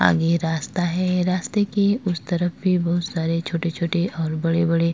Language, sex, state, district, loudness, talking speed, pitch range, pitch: Hindi, female, Maharashtra, Chandrapur, -22 LUFS, 195 wpm, 165-180 Hz, 170 Hz